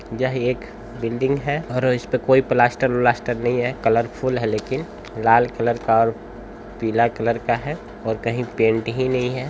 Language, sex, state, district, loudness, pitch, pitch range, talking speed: Hindi, male, Bihar, Begusarai, -21 LUFS, 120 Hz, 115-130 Hz, 170 wpm